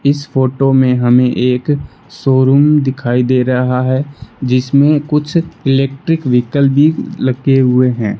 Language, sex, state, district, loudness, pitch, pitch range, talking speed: Hindi, male, Rajasthan, Bikaner, -13 LUFS, 130 Hz, 125-145 Hz, 130 wpm